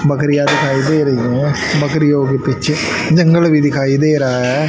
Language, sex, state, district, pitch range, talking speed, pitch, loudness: Hindi, male, Haryana, Rohtak, 135-155 Hz, 180 wpm, 145 Hz, -14 LUFS